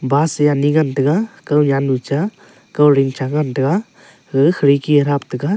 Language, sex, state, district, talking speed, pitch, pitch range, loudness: Wancho, male, Arunachal Pradesh, Longding, 170 wpm, 145 Hz, 135-155 Hz, -16 LUFS